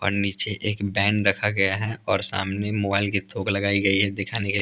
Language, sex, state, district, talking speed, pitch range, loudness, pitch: Hindi, male, Punjab, Pathankot, 245 wpm, 95-105 Hz, -22 LUFS, 100 Hz